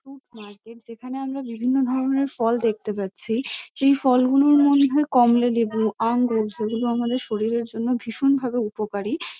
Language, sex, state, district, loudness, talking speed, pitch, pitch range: Bengali, female, West Bengal, Kolkata, -22 LUFS, 135 wpm, 240 Hz, 225-270 Hz